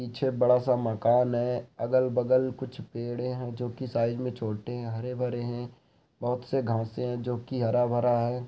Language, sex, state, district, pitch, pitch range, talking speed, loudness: Hindi, male, Bihar, Saharsa, 125 Hz, 120-125 Hz, 175 wpm, -29 LUFS